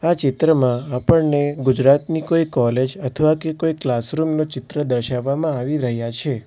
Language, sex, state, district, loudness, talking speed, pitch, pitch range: Gujarati, male, Gujarat, Valsad, -19 LUFS, 150 wpm, 140 Hz, 125-155 Hz